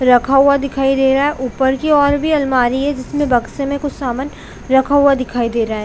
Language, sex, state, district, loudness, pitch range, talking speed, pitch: Hindi, female, Chhattisgarh, Bilaspur, -15 LUFS, 255-285 Hz, 235 wpm, 270 Hz